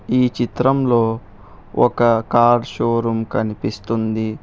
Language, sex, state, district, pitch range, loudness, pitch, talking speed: Telugu, male, Telangana, Hyderabad, 110-120 Hz, -18 LUFS, 115 Hz, 80 wpm